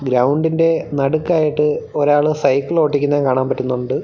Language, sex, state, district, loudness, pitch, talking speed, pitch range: Malayalam, male, Kerala, Thiruvananthapuram, -16 LUFS, 145 Hz, 105 wpm, 135-155 Hz